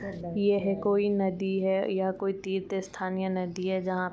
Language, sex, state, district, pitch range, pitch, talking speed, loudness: Hindi, female, Uttar Pradesh, Varanasi, 185-195 Hz, 190 Hz, 190 wpm, -29 LUFS